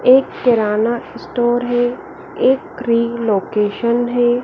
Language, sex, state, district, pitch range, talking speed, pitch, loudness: Hindi, female, Madhya Pradesh, Dhar, 230-245 Hz, 110 wpm, 240 Hz, -17 LUFS